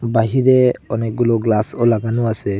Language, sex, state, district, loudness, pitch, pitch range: Bengali, male, Assam, Hailakandi, -16 LUFS, 115 Hz, 115-120 Hz